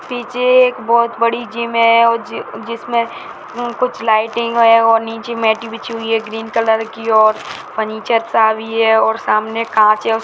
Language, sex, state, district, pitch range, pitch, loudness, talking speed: Hindi, male, Bihar, Jahanabad, 220-235 Hz, 230 Hz, -15 LUFS, 175 wpm